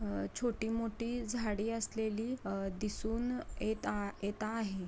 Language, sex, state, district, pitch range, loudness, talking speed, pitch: Marathi, female, Maharashtra, Pune, 205-230 Hz, -38 LUFS, 125 wpm, 220 Hz